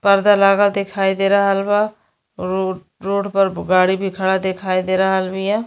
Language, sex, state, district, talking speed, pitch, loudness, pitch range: Bhojpuri, female, Uttar Pradesh, Deoria, 170 wpm, 195 Hz, -17 LUFS, 190-200 Hz